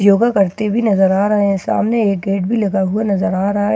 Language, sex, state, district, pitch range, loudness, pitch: Hindi, female, Bihar, Katihar, 195-210 Hz, -15 LUFS, 200 Hz